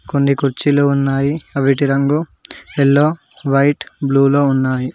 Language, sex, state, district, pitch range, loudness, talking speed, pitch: Telugu, male, Telangana, Mahabubabad, 135-145 Hz, -15 LUFS, 120 wpm, 140 Hz